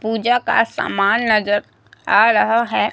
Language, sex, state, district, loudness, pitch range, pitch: Hindi, female, Himachal Pradesh, Shimla, -16 LUFS, 210-230 Hz, 225 Hz